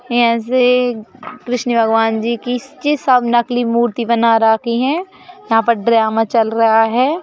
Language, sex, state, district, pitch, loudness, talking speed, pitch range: Hindi, female, Madhya Pradesh, Bhopal, 235 Hz, -15 LUFS, 160 wpm, 225-250 Hz